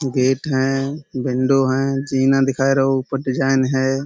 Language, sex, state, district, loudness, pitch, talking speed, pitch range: Hindi, male, Uttar Pradesh, Budaun, -18 LUFS, 135 Hz, 160 wpm, 130-135 Hz